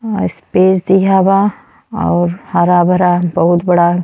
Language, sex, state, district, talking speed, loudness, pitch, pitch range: Bhojpuri, female, Uttar Pradesh, Deoria, 150 wpm, -12 LUFS, 180 Hz, 175-190 Hz